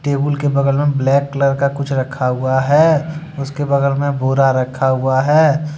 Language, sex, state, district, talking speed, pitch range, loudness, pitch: Hindi, male, Jharkhand, Deoghar, 185 wpm, 135-145 Hz, -16 LUFS, 140 Hz